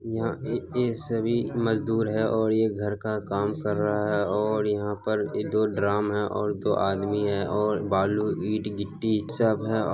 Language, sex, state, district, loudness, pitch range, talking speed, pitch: Hindi, male, Bihar, Kishanganj, -26 LUFS, 105-110 Hz, 185 wpm, 105 Hz